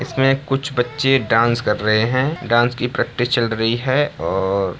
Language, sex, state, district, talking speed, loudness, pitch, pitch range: Hindi, male, Bihar, Bhagalpur, 185 wpm, -18 LUFS, 120 Hz, 115-135 Hz